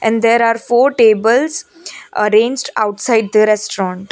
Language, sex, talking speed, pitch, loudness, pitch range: English, female, 115 wpm, 225 Hz, -13 LUFS, 215-245 Hz